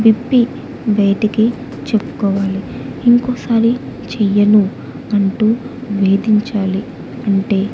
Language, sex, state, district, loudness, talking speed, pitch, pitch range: Telugu, female, Andhra Pradesh, Annamaya, -15 LUFS, 60 wpm, 215 Hz, 200-235 Hz